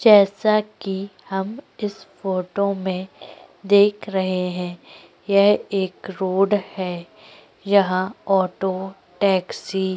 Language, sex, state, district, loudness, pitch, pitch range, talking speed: Hindi, female, Chhattisgarh, Korba, -21 LUFS, 195 Hz, 185-200 Hz, 100 wpm